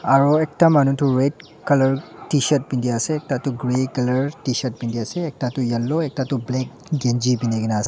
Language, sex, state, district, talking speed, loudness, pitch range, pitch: Nagamese, male, Nagaland, Dimapur, 175 wpm, -21 LUFS, 125-145 Hz, 135 Hz